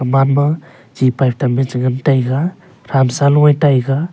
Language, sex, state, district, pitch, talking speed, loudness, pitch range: Wancho, male, Arunachal Pradesh, Longding, 135 Hz, 145 wpm, -14 LUFS, 130-145 Hz